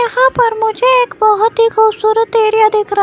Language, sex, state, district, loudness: Hindi, female, Himachal Pradesh, Shimla, -11 LUFS